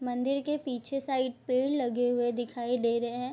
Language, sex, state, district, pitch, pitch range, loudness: Hindi, female, Bihar, Madhepura, 250 Hz, 240-270 Hz, -30 LUFS